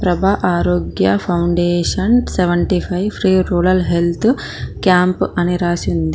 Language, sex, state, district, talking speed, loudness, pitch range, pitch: Telugu, female, Telangana, Mahabubabad, 115 wpm, -16 LUFS, 170-185 Hz, 175 Hz